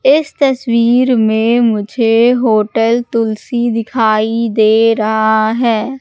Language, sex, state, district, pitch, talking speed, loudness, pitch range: Hindi, female, Madhya Pradesh, Katni, 230 Hz, 100 wpm, -12 LUFS, 220-240 Hz